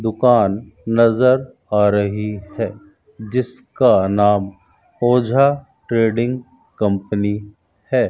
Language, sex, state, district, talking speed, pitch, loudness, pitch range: Hindi, male, Rajasthan, Bikaner, 80 wpm, 110 Hz, -18 LUFS, 105-125 Hz